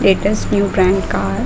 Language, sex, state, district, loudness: Hindi, female, Uttar Pradesh, Muzaffarnagar, -16 LUFS